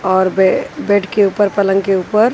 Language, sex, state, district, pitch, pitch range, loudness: Hindi, female, Haryana, Rohtak, 195 Hz, 190-205 Hz, -14 LUFS